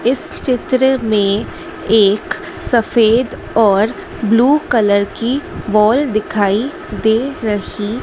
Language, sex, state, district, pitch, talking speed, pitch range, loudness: Hindi, female, Madhya Pradesh, Dhar, 225 Hz, 95 wpm, 210-255 Hz, -15 LUFS